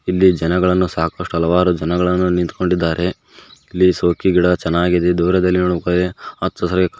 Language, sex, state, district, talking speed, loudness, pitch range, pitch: Kannada, male, Karnataka, Koppal, 120 wpm, -17 LUFS, 85-90 Hz, 90 Hz